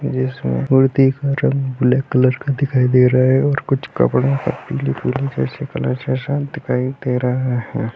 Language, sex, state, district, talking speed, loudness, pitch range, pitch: Hindi, male, Bihar, Madhepura, 175 wpm, -18 LUFS, 120-135 Hz, 130 Hz